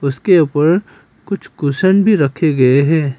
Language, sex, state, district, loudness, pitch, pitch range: Hindi, male, Arunachal Pradesh, Papum Pare, -13 LUFS, 155 Hz, 140-190 Hz